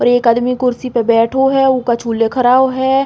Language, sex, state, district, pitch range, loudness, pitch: Bundeli, female, Uttar Pradesh, Hamirpur, 235-260 Hz, -13 LUFS, 250 Hz